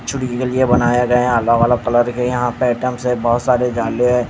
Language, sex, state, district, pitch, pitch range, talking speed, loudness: Hindi, male, Haryana, Jhajjar, 125 Hz, 120-125 Hz, 235 wpm, -16 LUFS